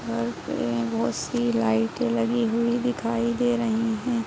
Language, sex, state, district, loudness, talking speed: Hindi, female, Uttar Pradesh, Jalaun, -25 LUFS, 140 wpm